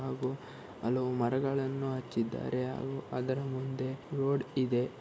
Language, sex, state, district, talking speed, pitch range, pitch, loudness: Kannada, male, Karnataka, Shimoga, 110 wpm, 125-135 Hz, 130 Hz, -34 LUFS